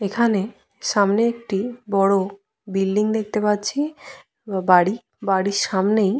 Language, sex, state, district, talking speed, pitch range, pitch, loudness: Bengali, female, Jharkhand, Jamtara, 115 wpm, 195-230 Hz, 205 Hz, -21 LUFS